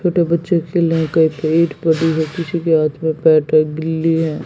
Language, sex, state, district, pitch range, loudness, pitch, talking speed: Hindi, female, Haryana, Jhajjar, 160-170 Hz, -16 LUFS, 160 Hz, 160 wpm